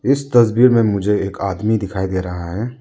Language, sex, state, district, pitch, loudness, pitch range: Hindi, male, Arunachal Pradesh, Lower Dibang Valley, 105 Hz, -17 LUFS, 95-120 Hz